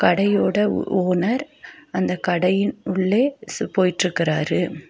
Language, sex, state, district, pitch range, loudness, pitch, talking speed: Tamil, female, Tamil Nadu, Nilgiris, 180-220 Hz, -21 LUFS, 185 Hz, 85 wpm